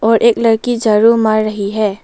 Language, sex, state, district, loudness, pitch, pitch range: Hindi, female, Arunachal Pradesh, Lower Dibang Valley, -13 LUFS, 220 Hz, 215-230 Hz